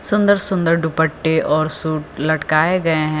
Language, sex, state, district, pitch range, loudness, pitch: Hindi, female, Uttar Pradesh, Lucknow, 155-175 Hz, -17 LUFS, 160 Hz